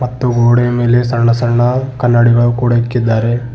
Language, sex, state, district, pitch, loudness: Kannada, male, Karnataka, Bidar, 120 Hz, -12 LUFS